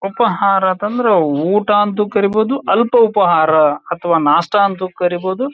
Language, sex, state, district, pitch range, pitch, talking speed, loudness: Kannada, male, Karnataka, Bijapur, 180-215 Hz, 200 Hz, 120 wpm, -14 LUFS